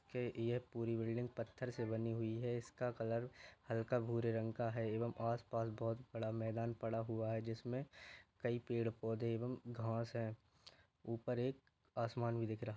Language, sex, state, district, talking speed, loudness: Hindi, female, Bihar, Lakhisarai, 185 wpm, -43 LUFS